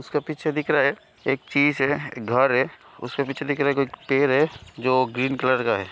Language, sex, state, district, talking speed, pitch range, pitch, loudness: Hindi, male, Bihar, Kishanganj, 245 wpm, 130-145 Hz, 135 Hz, -23 LUFS